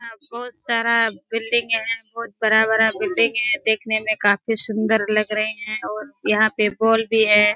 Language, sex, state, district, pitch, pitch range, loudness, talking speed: Hindi, female, Bihar, Kishanganj, 220 Hz, 215-230 Hz, -19 LUFS, 165 wpm